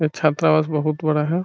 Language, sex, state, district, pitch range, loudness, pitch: Hindi, male, Bihar, Saran, 150-155 Hz, -20 LUFS, 155 Hz